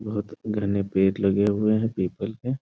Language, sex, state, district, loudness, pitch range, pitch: Hindi, male, Bihar, East Champaran, -24 LUFS, 100-110 Hz, 105 Hz